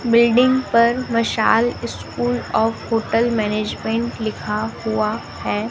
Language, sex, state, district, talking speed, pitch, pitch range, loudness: Hindi, female, Madhya Pradesh, Dhar, 105 wpm, 225 Hz, 210-235 Hz, -19 LUFS